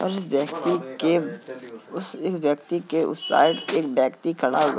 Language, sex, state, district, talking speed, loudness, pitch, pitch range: Hindi, male, Uttar Pradesh, Jalaun, 175 wpm, -24 LUFS, 160 Hz, 130-175 Hz